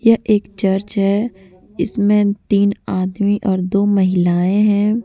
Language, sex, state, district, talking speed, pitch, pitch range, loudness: Hindi, female, Jharkhand, Deoghar, 130 wpm, 200 Hz, 190-210 Hz, -16 LUFS